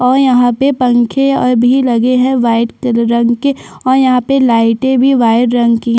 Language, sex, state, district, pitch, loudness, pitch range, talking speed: Hindi, female, Chhattisgarh, Sukma, 245 Hz, -11 LUFS, 235-265 Hz, 200 wpm